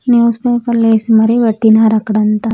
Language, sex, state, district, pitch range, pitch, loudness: Telugu, female, Andhra Pradesh, Sri Satya Sai, 220-235 Hz, 225 Hz, -11 LUFS